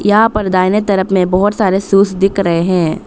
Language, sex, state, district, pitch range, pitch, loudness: Hindi, female, Arunachal Pradesh, Papum Pare, 185-205 Hz, 195 Hz, -13 LUFS